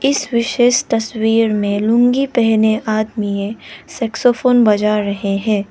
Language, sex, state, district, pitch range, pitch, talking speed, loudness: Hindi, female, Arunachal Pradesh, Lower Dibang Valley, 210-240 Hz, 225 Hz, 115 wpm, -15 LUFS